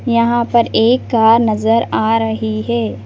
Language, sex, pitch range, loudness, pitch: Hindi, female, 220-235 Hz, -14 LUFS, 225 Hz